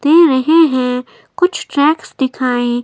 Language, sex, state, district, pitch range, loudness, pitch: Hindi, female, Himachal Pradesh, Shimla, 250-325 Hz, -14 LUFS, 285 Hz